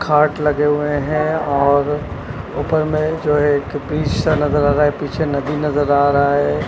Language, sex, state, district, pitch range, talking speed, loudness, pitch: Hindi, male, Punjab, Kapurthala, 145-150 Hz, 190 wpm, -17 LUFS, 145 Hz